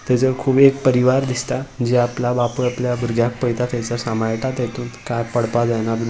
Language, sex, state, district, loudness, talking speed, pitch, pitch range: Konkani, male, Goa, North and South Goa, -19 LUFS, 185 wpm, 120 Hz, 120-130 Hz